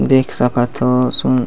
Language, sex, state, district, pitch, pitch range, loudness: Chhattisgarhi, male, Chhattisgarh, Bastar, 125 Hz, 125-130 Hz, -15 LUFS